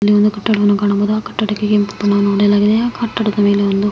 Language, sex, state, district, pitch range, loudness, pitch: Kannada, female, Karnataka, Mysore, 205-215 Hz, -15 LUFS, 205 Hz